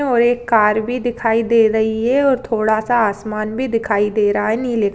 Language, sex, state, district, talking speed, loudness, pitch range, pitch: Hindi, female, Chhattisgarh, Kabirdham, 205 wpm, -17 LUFS, 215-240 Hz, 225 Hz